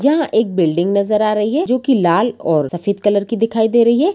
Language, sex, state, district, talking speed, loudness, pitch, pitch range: Hindi, female, Bihar, Saran, 260 wpm, -15 LUFS, 215 Hz, 200-235 Hz